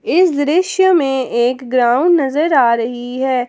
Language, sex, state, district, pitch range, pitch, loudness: Hindi, female, Jharkhand, Palamu, 245-335 Hz, 265 Hz, -14 LUFS